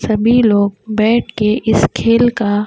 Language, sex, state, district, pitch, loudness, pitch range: Urdu, female, Uttar Pradesh, Budaun, 220 Hz, -13 LUFS, 210-230 Hz